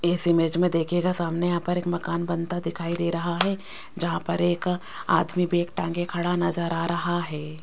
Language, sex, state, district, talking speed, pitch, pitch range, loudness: Hindi, female, Rajasthan, Jaipur, 205 wpm, 175 Hz, 170-175 Hz, -25 LUFS